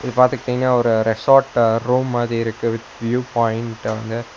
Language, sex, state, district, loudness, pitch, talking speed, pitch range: Tamil, male, Tamil Nadu, Nilgiris, -18 LUFS, 115 Hz, 150 wpm, 115-125 Hz